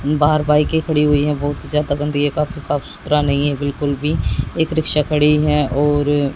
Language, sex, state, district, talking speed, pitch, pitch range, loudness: Hindi, female, Haryana, Jhajjar, 215 wpm, 150 Hz, 145-150 Hz, -17 LUFS